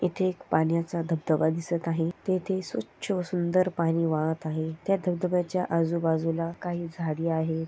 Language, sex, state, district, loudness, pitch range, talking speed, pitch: Marathi, female, Maharashtra, Sindhudurg, -28 LUFS, 165-180 Hz, 150 wpm, 170 Hz